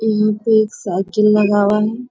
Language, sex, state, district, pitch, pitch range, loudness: Hindi, female, Bihar, Bhagalpur, 210 Hz, 205-220 Hz, -16 LUFS